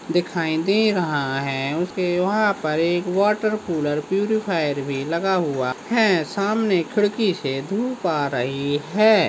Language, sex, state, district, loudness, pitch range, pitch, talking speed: Hindi, male, Maharashtra, Solapur, -21 LUFS, 150-205 Hz, 175 Hz, 140 wpm